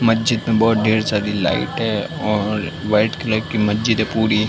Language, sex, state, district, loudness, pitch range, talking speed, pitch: Hindi, male, Uttar Pradesh, Varanasi, -18 LUFS, 105-115 Hz, 160 wpm, 110 Hz